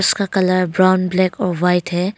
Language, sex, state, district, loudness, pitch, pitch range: Hindi, female, Arunachal Pradesh, Longding, -16 LUFS, 185 Hz, 180-185 Hz